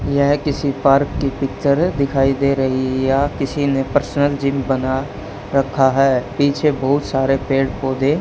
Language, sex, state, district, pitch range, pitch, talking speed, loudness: Hindi, male, Haryana, Charkhi Dadri, 135-140 Hz, 135 Hz, 155 wpm, -17 LUFS